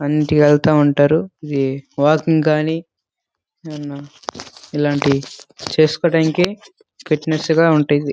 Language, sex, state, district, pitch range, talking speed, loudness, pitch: Telugu, male, Andhra Pradesh, Guntur, 145-160 Hz, 80 wpm, -16 LUFS, 150 Hz